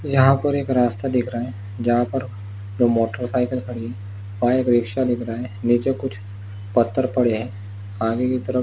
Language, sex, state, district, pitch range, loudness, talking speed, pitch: Hindi, male, Maharashtra, Nagpur, 105-125 Hz, -21 LUFS, 195 wpm, 120 Hz